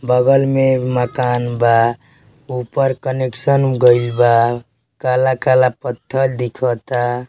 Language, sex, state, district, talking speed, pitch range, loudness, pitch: Bhojpuri, male, Uttar Pradesh, Deoria, 90 wpm, 120-130 Hz, -16 LUFS, 125 Hz